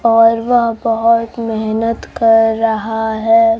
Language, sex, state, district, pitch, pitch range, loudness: Hindi, female, Bihar, Kaimur, 225 Hz, 225-230 Hz, -14 LUFS